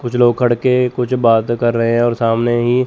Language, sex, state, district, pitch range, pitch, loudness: Hindi, male, Chandigarh, Chandigarh, 120-125 Hz, 120 Hz, -15 LUFS